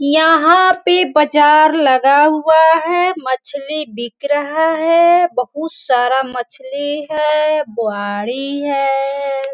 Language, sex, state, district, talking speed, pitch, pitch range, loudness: Hindi, female, Bihar, Sitamarhi, 95 wpm, 295 Hz, 270-320 Hz, -14 LUFS